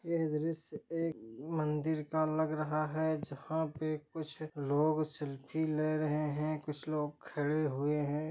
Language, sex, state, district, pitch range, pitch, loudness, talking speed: Hindi, male, Jharkhand, Sahebganj, 150-160 Hz, 155 Hz, -36 LUFS, 145 wpm